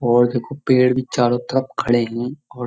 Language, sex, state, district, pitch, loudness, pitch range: Hindi, male, Uttar Pradesh, Jyotiba Phule Nagar, 125 Hz, -19 LUFS, 120-130 Hz